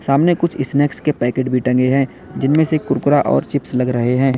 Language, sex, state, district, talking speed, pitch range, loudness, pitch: Hindi, male, Uttar Pradesh, Lalitpur, 220 wpm, 125-150 Hz, -17 LUFS, 135 Hz